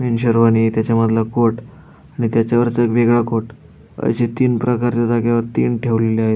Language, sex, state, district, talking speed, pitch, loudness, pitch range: Marathi, male, Maharashtra, Aurangabad, 140 wpm, 115 Hz, -17 LUFS, 115-120 Hz